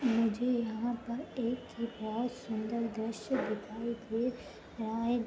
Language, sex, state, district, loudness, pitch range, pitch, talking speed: Hindi, female, Uttar Pradesh, Jalaun, -35 LUFS, 225-240 Hz, 235 Hz, 125 wpm